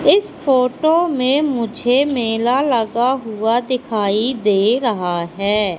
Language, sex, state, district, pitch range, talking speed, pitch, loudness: Hindi, female, Madhya Pradesh, Katni, 215-265 Hz, 115 wpm, 240 Hz, -17 LUFS